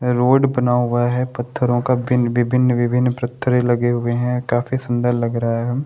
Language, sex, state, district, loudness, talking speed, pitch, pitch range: Hindi, male, Maharashtra, Chandrapur, -18 LUFS, 185 wpm, 125 Hz, 120-125 Hz